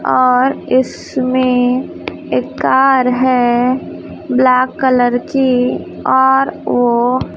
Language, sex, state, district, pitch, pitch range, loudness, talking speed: Hindi, female, Chhattisgarh, Raipur, 255 Hz, 250-260 Hz, -13 LUFS, 80 wpm